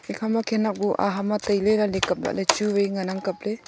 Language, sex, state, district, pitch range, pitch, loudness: Wancho, female, Arunachal Pradesh, Longding, 195-215 Hz, 205 Hz, -24 LUFS